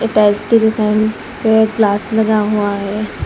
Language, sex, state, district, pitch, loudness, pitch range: Hindi, female, Assam, Hailakandi, 215 Hz, -14 LUFS, 210-220 Hz